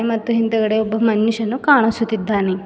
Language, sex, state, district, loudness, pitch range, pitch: Kannada, female, Karnataka, Bidar, -17 LUFS, 220-230 Hz, 225 Hz